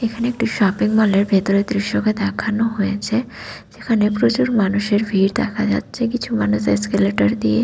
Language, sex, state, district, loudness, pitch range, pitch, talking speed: Bengali, female, West Bengal, Paschim Medinipur, -18 LUFS, 195-225 Hz, 205 Hz, 165 wpm